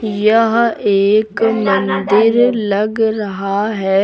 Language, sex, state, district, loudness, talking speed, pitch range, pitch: Hindi, female, Uttar Pradesh, Lucknow, -14 LUFS, 90 wpm, 200-225 Hz, 215 Hz